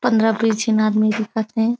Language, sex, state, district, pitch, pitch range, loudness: Chhattisgarhi, female, Chhattisgarh, Raigarh, 220 Hz, 215-225 Hz, -19 LUFS